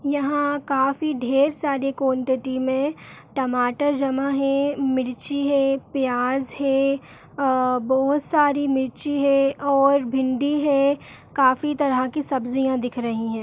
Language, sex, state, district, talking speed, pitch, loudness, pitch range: Kumaoni, female, Uttarakhand, Uttarkashi, 125 wpm, 275 Hz, -22 LUFS, 260-285 Hz